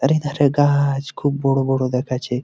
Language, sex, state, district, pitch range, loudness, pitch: Bengali, male, West Bengal, Malda, 130-145 Hz, -19 LUFS, 140 Hz